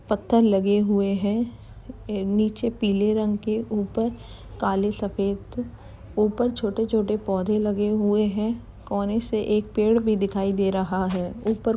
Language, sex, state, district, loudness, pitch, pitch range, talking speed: Hindi, female, Uttar Pradesh, Jalaun, -24 LUFS, 210 Hz, 200-220 Hz, 145 wpm